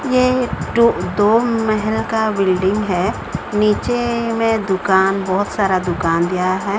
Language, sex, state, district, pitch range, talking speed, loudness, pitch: Hindi, female, Odisha, Sambalpur, 190-225 Hz, 130 wpm, -17 LUFS, 210 Hz